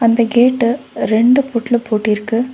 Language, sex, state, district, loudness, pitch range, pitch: Tamil, female, Tamil Nadu, Nilgiris, -15 LUFS, 225-245 Hz, 235 Hz